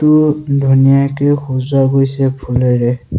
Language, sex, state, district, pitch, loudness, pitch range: Assamese, male, Assam, Sonitpur, 135 Hz, -13 LUFS, 130-140 Hz